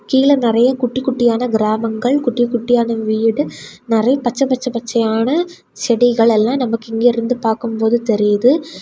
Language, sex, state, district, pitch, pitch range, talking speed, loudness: Tamil, female, Tamil Nadu, Kanyakumari, 240 Hz, 225-255 Hz, 120 wpm, -16 LUFS